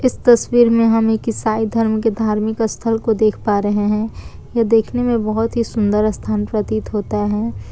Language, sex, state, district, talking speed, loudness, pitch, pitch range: Hindi, female, Bihar, Kishanganj, 185 wpm, -17 LUFS, 220 Hz, 210-230 Hz